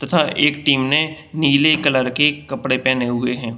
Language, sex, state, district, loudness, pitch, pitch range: Hindi, male, Bihar, Gopalganj, -17 LUFS, 140 Hz, 130-150 Hz